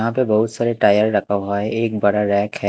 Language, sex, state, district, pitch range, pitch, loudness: Hindi, male, Punjab, Kapurthala, 100-115 Hz, 105 Hz, -18 LUFS